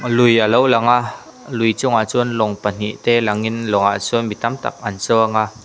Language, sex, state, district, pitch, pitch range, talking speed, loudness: Mizo, male, Mizoram, Aizawl, 115 Hz, 105-120 Hz, 210 wpm, -17 LUFS